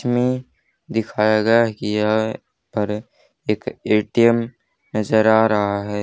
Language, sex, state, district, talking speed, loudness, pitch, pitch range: Hindi, male, Haryana, Charkhi Dadri, 140 wpm, -19 LUFS, 110 Hz, 105-115 Hz